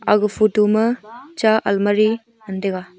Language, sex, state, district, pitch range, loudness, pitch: Wancho, female, Arunachal Pradesh, Longding, 200-225 Hz, -18 LUFS, 215 Hz